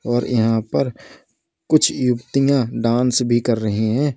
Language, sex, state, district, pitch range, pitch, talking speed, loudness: Hindi, male, Uttar Pradesh, Lalitpur, 115-130 Hz, 120 Hz, 145 wpm, -18 LUFS